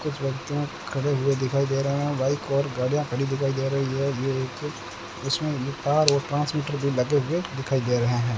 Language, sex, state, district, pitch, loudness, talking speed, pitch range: Hindi, male, Rajasthan, Bikaner, 140 Hz, -25 LUFS, 210 wpm, 135-145 Hz